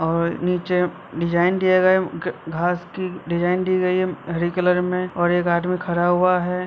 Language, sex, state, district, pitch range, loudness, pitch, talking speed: Hindi, male, Jharkhand, Sahebganj, 175-180 Hz, -21 LUFS, 180 Hz, 180 wpm